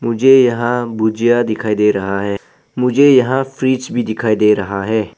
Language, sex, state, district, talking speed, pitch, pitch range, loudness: Hindi, male, Arunachal Pradesh, Papum Pare, 175 wpm, 115 Hz, 105-125 Hz, -14 LUFS